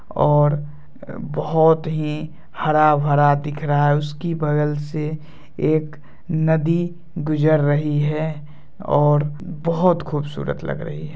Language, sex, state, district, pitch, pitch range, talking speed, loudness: Hindi, male, Bihar, Vaishali, 150 Hz, 150-160 Hz, 115 wpm, -20 LUFS